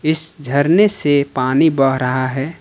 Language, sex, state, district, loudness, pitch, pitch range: Hindi, male, Jharkhand, Ranchi, -16 LUFS, 145 Hz, 130-160 Hz